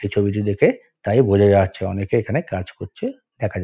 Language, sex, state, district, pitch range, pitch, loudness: Bengali, male, West Bengal, Dakshin Dinajpur, 100-120 Hz, 100 Hz, -20 LUFS